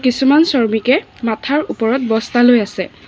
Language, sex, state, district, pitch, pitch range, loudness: Assamese, female, Assam, Sonitpur, 245 Hz, 225-265 Hz, -15 LUFS